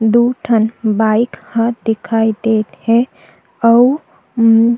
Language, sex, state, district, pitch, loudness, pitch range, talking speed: Chhattisgarhi, female, Chhattisgarh, Jashpur, 230 Hz, -14 LUFS, 220-235 Hz, 90 wpm